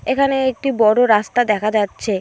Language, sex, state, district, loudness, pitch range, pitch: Bengali, female, West Bengal, Cooch Behar, -16 LUFS, 210-265 Hz, 220 Hz